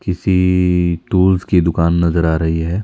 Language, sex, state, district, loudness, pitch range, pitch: Hindi, male, Himachal Pradesh, Shimla, -15 LUFS, 85-90 Hz, 90 Hz